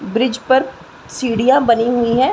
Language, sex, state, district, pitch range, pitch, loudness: Hindi, female, Uttar Pradesh, Gorakhpur, 235-260 Hz, 245 Hz, -15 LUFS